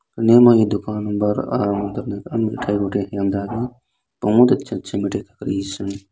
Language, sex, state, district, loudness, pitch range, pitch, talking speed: Sadri, male, Chhattisgarh, Jashpur, -19 LUFS, 100-115 Hz, 105 Hz, 80 wpm